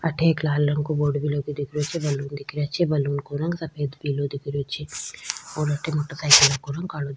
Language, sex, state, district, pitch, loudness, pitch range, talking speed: Rajasthani, female, Rajasthan, Nagaur, 145 Hz, -23 LUFS, 140-150 Hz, 250 wpm